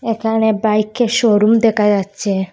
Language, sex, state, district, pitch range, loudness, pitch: Bengali, female, Assam, Hailakandi, 205-225 Hz, -15 LUFS, 215 Hz